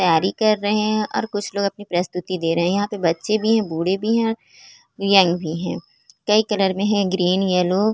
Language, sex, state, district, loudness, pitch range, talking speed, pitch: Hindi, female, Chhattisgarh, Korba, -20 LUFS, 180-210 Hz, 235 wpm, 195 Hz